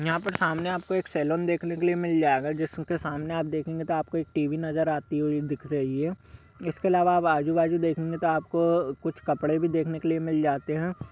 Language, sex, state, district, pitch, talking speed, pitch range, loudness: Hindi, male, Bihar, Darbhanga, 160 Hz, 215 wpm, 155-170 Hz, -27 LUFS